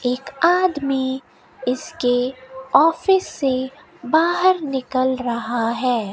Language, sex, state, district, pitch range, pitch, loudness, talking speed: Hindi, female, Rajasthan, Bikaner, 250-315 Hz, 265 Hz, -20 LUFS, 90 wpm